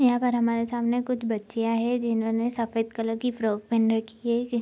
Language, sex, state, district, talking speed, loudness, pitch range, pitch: Hindi, female, Bihar, Araria, 195 wpm, -26 LUFS, 225-240 Hz, 230 Hz